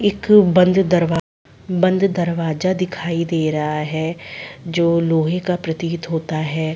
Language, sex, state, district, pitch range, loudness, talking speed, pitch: Hindi, female, Chhattisgarh, Sarguja, 160-185 Hz, -18 LUFS, 135 wpm, 170 Hz